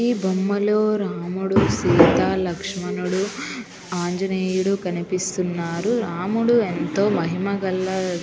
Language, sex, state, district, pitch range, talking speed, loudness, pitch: Telugu, female, Telangana, Nalgonda, 180-200 Hz, 80 wpm, -22 LUFS, 190 Hz